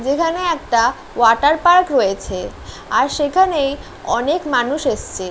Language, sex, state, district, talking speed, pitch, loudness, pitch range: Bengali, female, West Bengal, North 24 Parganas, 115 wpm, 285 Hz, -17 LUFS, 245-335 Hz